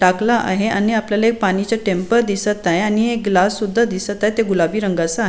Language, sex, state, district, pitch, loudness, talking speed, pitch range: Marathi, female, Maharashtra, Chandrapur, 210 Hz, -17 LUFS, 215 wpm, 190-225 Hz